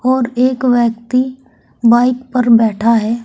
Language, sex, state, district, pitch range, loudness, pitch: Hindi, female, Uttar Pradesh, Saharanpur, 230-255 Hz, -13 LUFS, 245 Hz